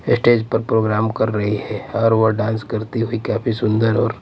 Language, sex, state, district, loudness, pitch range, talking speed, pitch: Hindi, male, Punjab, Pathankot, -19 LUFS, 110-115 Hz, 200 wpm, 110 Hz